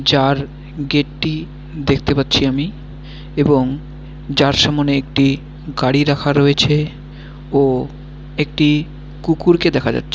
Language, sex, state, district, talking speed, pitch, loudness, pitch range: Bengali, male, West Bengal, Malda, 100 wpm, 145 Hz, -16 LUFS, 140-145 Hz